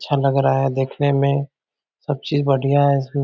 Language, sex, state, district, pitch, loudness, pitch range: Hindi, male, Bihar, Darbhanga, 140 Hz, -19 LUFS, 135-145 Hz